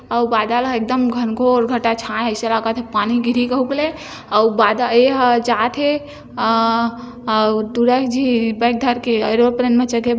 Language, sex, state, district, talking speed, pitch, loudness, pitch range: Hindi, female, Chhattisgarh, Bilaspur, 170 wpm, 240 Hz, -17 LUFS, 225-245 Hz